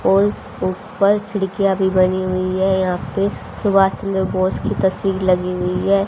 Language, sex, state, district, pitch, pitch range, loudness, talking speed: Hindi, female, Haryana, Jhajjar, 190 Hz, 185-195 Hz, -18 LUFS, 165 wpm